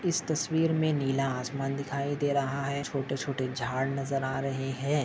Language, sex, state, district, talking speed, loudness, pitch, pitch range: Hindi, male, Maharashtra, Dhule, 190 wpm, -30 LUFS, 140 Hz, 135-145 Hz